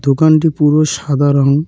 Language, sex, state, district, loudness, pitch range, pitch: Bengali, male, West Bengal, Cooch Behar, -12 LUFS, 140-155 Hz, 150 Hz